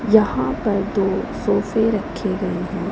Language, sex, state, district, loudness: Hindi, female, Punjab, Pathankot, -21 LUFS